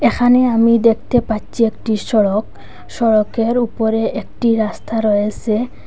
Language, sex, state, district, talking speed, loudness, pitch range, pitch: Bengali, female, Assam, Hailakandi, 110 wpm, -16 LUFS, 215-235 Hz, 225 Hz